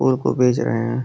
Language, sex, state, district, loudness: Hindi, male, Uttar Pradesh, Gorakhpur, -19 LUFS